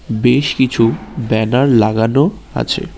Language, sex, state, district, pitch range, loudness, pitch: Bengali, male, West Bengal, Cooch Behar, 115-140 Hz, -14 LUFS, 125 Hz